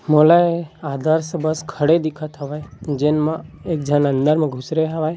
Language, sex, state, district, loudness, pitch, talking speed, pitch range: Chhattisgarhi, male, Chhattisgarh, Bilaspur, -19 LUFS, 155 Hz, 160 wpm, 145-160 Hz